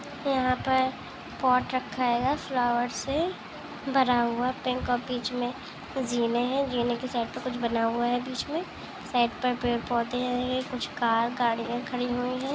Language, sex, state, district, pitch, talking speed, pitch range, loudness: Hindi, female, Goa, North and South Goa, 250 Hz, 165 wpm, 240-260 Hz, -28 LUFS